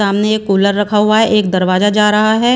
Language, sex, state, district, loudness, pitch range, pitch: Hindi, female, Haryana, Charkhi Dadri, -12 LUFS, 200-215 Hz, 210 Hz